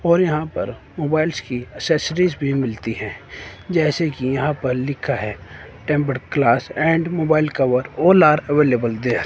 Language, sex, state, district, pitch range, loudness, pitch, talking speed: Hindi, male, Himachal Pradesh, Shimla, 125-155 Hz, -19 LUFS, 140 Hz, 155 wpm